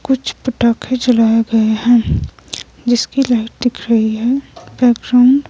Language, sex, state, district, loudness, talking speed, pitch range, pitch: Hindi, female, Himachal Pradesh, Shimla, -14 LUFS, 130 wpm, 230-255 Hz, 240 Hz